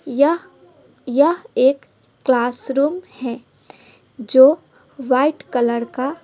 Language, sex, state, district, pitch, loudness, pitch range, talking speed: Hindi, female, West Bengal, Alipurduar, 270 Hz, -18 LUFS, 250-295 Hz, 85 wpm